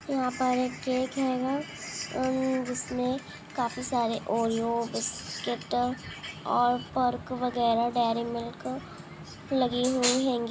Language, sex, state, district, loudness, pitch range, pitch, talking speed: Hindi, female, Bihar, Purnia, -29 LUFS, 235-255 Hz, 250 Hz, 105 wpm